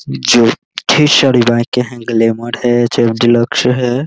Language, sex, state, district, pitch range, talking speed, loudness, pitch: Hindi, male, Bihar, Araria, 115-125 Hz, 90 wpm, -12 LUFS, 120 Hz